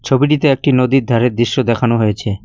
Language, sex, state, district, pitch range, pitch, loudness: Bengali, male, West Bengal, Cooch Behar, 115-135 Hz, 125 Hz, -14 LUFS